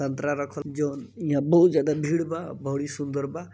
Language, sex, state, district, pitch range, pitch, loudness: Bhojpuri, male, Bihar, East Champaran, 140-165 Hz, 145 Hz, -26 LUFS